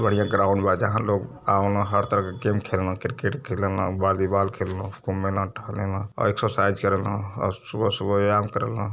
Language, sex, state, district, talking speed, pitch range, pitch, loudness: Hindi, male, Uttar Pradesh, Varanasi, 210 wpm, 95-105 Hz, 100 Hz, -24 LUFS